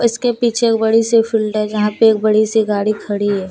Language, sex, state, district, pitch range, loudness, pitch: Hindi, female, Jharkhand, Deoghar, 210-225 Hz, -15 LUFS, 220 Hz